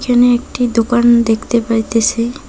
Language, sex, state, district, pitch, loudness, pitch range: Bengali, female, West Bengal, Cooch Behar, 235 Hz, -13 LUFS, 230-245 Hz